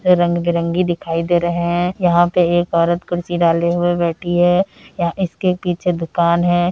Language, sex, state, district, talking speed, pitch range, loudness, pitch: Hindi, female, Uttar Pradesh, Deoria, 180 wpm, 170-175 Hz, -17 LUFS, 175 Hz